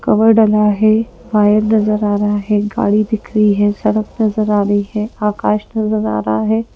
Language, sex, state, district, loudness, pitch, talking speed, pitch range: Hindi, female, Madhya Pradesh, Bhopal, -14 LUFS, 210 Hz, 195 wpm, 205-215 Hz